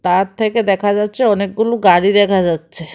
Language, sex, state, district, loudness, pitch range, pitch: Bengali, female, Tripura, West Tripura, -14 LUFS, 180-215 Hz, 200 Hz